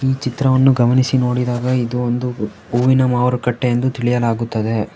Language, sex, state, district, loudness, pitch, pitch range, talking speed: Kannada, male, Karnataka, Bangalore, -17 LUFS, 125 Hz, 120-130 Hz, 120 wpm